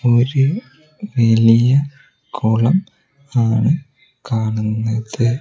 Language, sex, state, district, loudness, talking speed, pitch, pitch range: Malayalam, male, Kerala, Kozhikode, -17 LUFS, 55 wpm, 125 Hz, 115-145 Hz